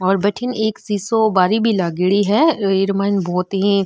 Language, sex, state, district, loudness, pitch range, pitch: Marwari, female, Rajasthan, Nagaur, -17 LUFS, 195-220 Hz, 200 Hz